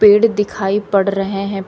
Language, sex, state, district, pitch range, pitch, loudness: Hindi, female, Uttar Pradesh, Shamli, 195-210 Hz, 200 Hz, -16 LUFS